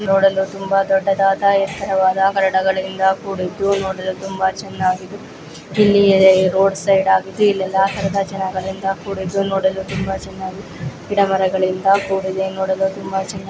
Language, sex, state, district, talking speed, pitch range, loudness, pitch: Kannada, female, Karnataka, Dakshina Kannada, 110 wpm, 190-195 Hz, -17 LUFS, 195 Hz